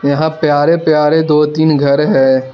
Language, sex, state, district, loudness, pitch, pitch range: Hindi, male, Arunachal Pradesh, Lower Dibang Valley, -11 LUFS, 150 Hz, 140-155 Hz